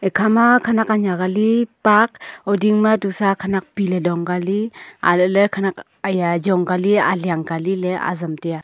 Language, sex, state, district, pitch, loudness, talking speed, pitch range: Wancho, female, Arunachal Pradesh, Longding, 195 Hz, -18 LUFS, 165 wpm, 180-210 Hz